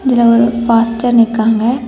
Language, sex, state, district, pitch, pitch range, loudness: Tamil, female, Tamil Nadu, Kanyakumari, 235 Hz, 230-240 Hz, -12 LUFS